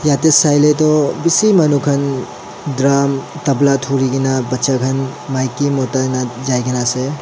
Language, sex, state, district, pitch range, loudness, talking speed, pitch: Nagamese, male, Nagaland, Dimapur, 130-145 Hz, -15 LUFS, 150 wpm, 135 Hz